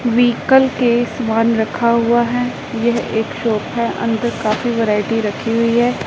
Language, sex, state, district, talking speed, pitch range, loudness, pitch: Hindi, female, Punjab, Pathankot, 160 wpm, 225-240 Hz, -16 LUFS, 235 Hz